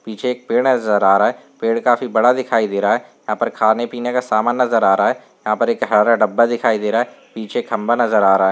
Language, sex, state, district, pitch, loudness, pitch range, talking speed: Hindi, male, Uttar Pradesh, Varanasi, 115 Hz, -17 LUFS, 105-120 Hz, 275 wpm